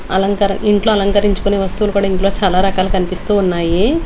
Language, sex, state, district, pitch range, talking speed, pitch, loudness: Telugu, female, Andhra Pradesh, Manyam, 190-205 Hz, 150 wpm, 195 Hz, -15 LUFS